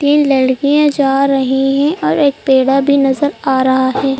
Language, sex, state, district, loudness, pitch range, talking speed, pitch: Hindi, female, Madhya Pradesh, Bhopal, -12 LUFS, 265-285 Hz, 185 wpm, 275 Hz